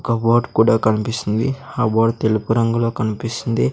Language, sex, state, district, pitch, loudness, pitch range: Telugu, male, Andhra Pradesh, Sri Satya Sai, 115 Hz, -18 LUFS, 110-115 Hz